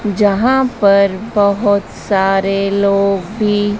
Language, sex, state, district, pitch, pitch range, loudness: Hindi, male, Madhya Pradesh, Dhar, 200 Hz, 195-205 Hz, -14 LUFS